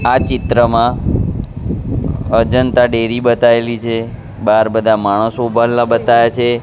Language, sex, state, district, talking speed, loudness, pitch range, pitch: Gujarati, male, Gujarat, Gandhinagar, 120 wpm, -14 LUFS, 110-120 Hz, 115 Hz